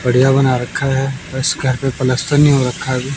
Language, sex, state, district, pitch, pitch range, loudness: Hindi, male, Bihar, West Champaran, 135 Hz, 130-135 Hz, -15 LUFS